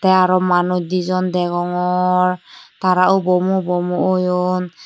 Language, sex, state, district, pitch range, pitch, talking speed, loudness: Chakma, female, Tripura, Unakoti, 180-185 Hz, 180 Hz, 125 wpm, -17 LUFS